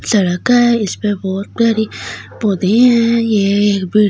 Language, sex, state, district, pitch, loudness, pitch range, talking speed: Hindi, female, Delhi, New Delhi, 210 Hz, -14 LUFS, 200-230 Hz, 175 wpm